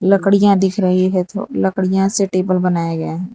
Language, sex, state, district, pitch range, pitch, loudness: Hindi, female, Gujarat, Valsad, 185-195 Hz, 190 Hz, -16 LUFS